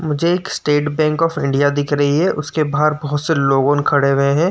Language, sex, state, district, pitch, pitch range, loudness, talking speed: Hindi, male, Uttar Pradesh, Jyotiba Phule Nagar, 145 Hz, 145-155 Hz, -16 LUFS, 225 wpm